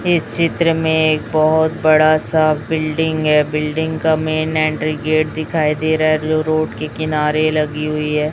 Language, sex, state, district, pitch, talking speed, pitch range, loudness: Hindi, female, Chhattisgarh, Raipur, 155 Hz, 175 wpm, 155-160 Hz, -16 LUFS